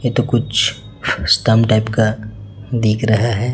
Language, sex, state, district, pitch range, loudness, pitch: Hindi, male, Chhattisgarh, Raipur, 105-120 Hz, -16 LUFS, 110 Hz